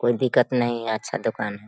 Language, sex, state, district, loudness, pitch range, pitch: Hindi, female, Bihar, Sitamarhi, -23 LUFS, 110-125 Hz, 120 Hz